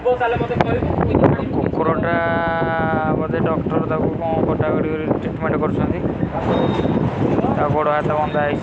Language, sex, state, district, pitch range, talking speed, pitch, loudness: Odia, male, Odisha, Khordha, 150-165 Hz, 105 wpm, 160 Hz, -19 LUFS